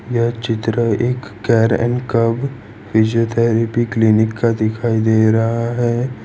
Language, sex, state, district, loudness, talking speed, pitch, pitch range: Hindi, male, Gujarat, Valsad, -17 LUFS, 125 wpm, 115 Hz, 110-120 Hz